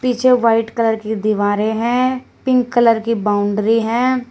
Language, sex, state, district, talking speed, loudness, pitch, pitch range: Hindi, female, Uttar Pradesh, Shamli, 155 wpm, -16 LUFS, 230 Hz, 220-250 Hz